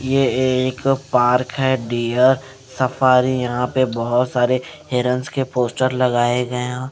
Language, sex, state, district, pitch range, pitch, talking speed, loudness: Hindi, male, Punjab, Fazilka, 125-130 Hz, 130 Hz, 140 wpm, -18 LUFS